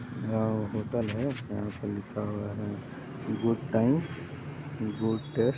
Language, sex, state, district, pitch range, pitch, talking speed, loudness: Hindi, male, Chhattisgarh, Balrampur, 105-135 Hz, 115 Hz, 130 wpm, -32 LUFS